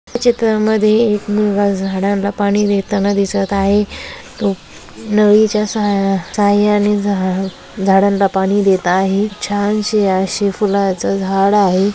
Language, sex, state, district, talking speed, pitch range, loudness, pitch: Marathi, female, Maharashtra, Aurangabad, 130 wpm, 195-210 Hz, -15 LUFS, 200 Hz